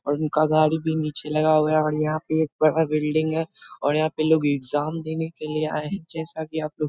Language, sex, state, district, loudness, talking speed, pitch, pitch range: Hindi, male, Bihar, Muzaffarpur, -23 LUFS, 260 wpm, 155 Hz, 155-160 Hz